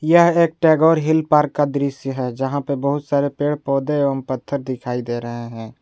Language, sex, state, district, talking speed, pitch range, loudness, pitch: Hindi, male, Jharkhand, Ranchi, 205 wpm, 130-150 Hz, -19 LUFS, 140 Hz